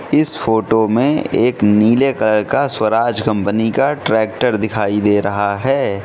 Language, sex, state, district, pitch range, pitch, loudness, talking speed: Hindi, male, Mizoram, Aizawl, 105-125 Hz, 110 Hz, -15 LUFS, 150 wpm